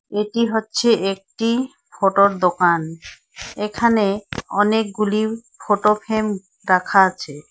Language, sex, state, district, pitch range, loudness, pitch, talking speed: Bengali, female, West Bengal, Alipurduar, 190-220 Hz, -19 LUFS, 205 Hz, 90 wpm